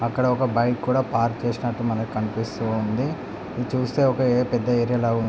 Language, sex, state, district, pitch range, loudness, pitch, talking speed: Telugu, male, Andhra Pradesh, Anantapur, 115-125 Hz, -23 LUFS, 120 Hz, 170 wpm